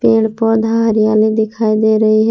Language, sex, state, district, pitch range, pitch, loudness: Hindi, female, Jharkhand, Palamu, 215-225 Hz, 220 Hz, -13 LUFS